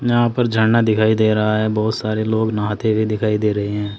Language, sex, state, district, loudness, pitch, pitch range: Hindi, male, Uttar Pradesh, Saharanpur, -18 LUFS, 110 Hz, 105-110 Hz